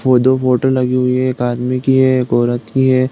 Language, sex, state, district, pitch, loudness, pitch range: Hindi, male, Uttar Pradesh, Deoria, 130 Hz, -14 LUFS, 125-130 Hz